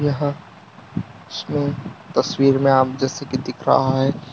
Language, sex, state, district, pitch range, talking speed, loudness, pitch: Hindi, male, Gujarat, Valsad, 135-145 Hz, 150 wpm, -20 LUFS, 140 Hz